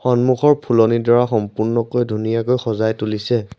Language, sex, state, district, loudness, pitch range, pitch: Assamese, male, Assam, Sonitpur, -17 LUFS, 110-125 Hz, 115 Hz